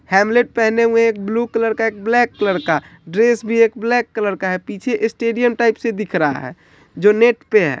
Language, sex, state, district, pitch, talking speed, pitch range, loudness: Hindi, male, Bihar, Sitamarhi, 225 Hz, 225 wpm, 205-235 Hz, -17 LUFS